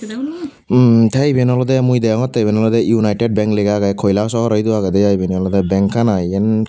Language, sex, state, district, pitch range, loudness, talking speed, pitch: Chakma, female, Tripura, Unakoti, 100-125 Hz, -15 LUFS, 190 wpm, 110 Hz